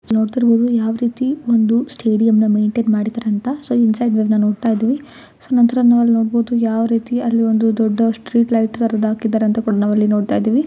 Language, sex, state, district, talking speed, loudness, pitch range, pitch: Kannada, female, Karnataka, Raichur, 175 wpm, -16 LUFS, 220-235 Hz, 225 Hz